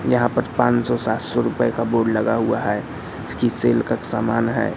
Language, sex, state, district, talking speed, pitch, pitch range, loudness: Hindi, male, Madhya Pradesh, Katni, 215 wpm, 115 Hz, 115-120 Hz, -20 LUFS